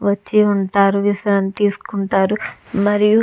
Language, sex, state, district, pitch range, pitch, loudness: Telugu, female, Andhra Pradesh, Visakhapatnam, 200-205 Hz, 205 Hz, -17 LUFS